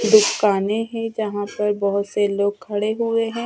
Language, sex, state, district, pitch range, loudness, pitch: Hindi, female, Chhattisgarh, Raipur, 205-225 Hz, -21 LUFS, 210 Hz